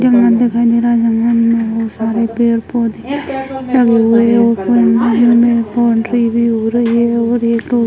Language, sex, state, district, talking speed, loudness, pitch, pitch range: Hindi, female, Rajasthan, Churu, 90 wpm, -13 LUFS, 235 Hz, 230-240 Hz